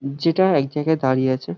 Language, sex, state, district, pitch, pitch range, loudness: Bengali, male, West Bengal, Jhargram, 140 Hz, 130-160 Hz, -19 LUFS